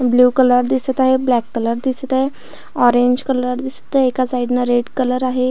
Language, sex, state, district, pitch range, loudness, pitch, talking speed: Marathi, female, Maharashtra, Pune, 245-260 Hz, -16 LUFS, 255 Hz, 195 wpm